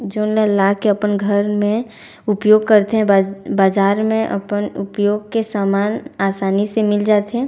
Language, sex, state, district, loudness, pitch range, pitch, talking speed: Chhattisgarhi, female, Chhattisgarh, Raigarh, -17 LUFS, 200-215 Hz, 210 Hz, 150 wpm